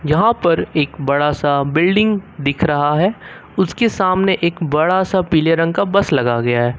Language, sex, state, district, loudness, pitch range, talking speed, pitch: Hindi, male, Uttar Pradesh, Lucknow, -16 LUFS, 145-190 Hz, 175 wpm, 165 Hz